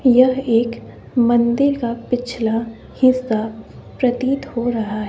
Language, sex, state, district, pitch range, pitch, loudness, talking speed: Hindi, female, Bihar, West Champaran, 230-255 Hz, 240 Hz, -18 LUFS, 105 wpm